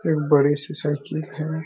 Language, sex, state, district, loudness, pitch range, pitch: Hindi, male, Chhattisgarh, Raigarh, -22 LUFS, 145-160 Hz, 155 Hz